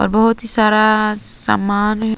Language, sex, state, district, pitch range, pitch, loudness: Hindi, female, Jharkhand, Palamu, 205-220 Hz, 215 Hz, -15 LUFS